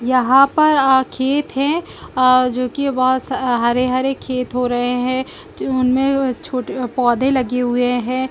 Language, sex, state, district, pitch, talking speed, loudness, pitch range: Hindi, female, Chhattisgarh, Bilaspur, 255 Hz, 145 wpm, -17 LUFS, 250-270 Hz